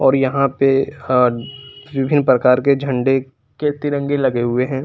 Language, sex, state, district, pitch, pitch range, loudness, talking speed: Hindi, male, Jharkhand, Palamu, 135 Hz, 130-140 Hz, -17 LUFS, 160 wpm